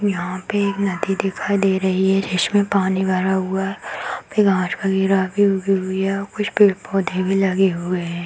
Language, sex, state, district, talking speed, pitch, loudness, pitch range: Hindi, female, Bihar, Darbhanga, 225 wpm, 195 Hz, -19 LUFS, 185-200 Hz